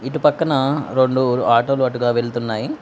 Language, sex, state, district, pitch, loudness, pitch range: Telugu, female, Telangana, Mahabubabad, 130 Hz, -18 LUFS, 120-140 Hz